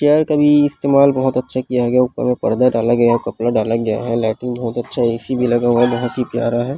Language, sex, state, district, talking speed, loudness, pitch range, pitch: Chhattisgarhi, female, Chhattisgarh, Rajnandgaon, 285 wpm, -16 LUFS, 120-130 Hz, 125 Hz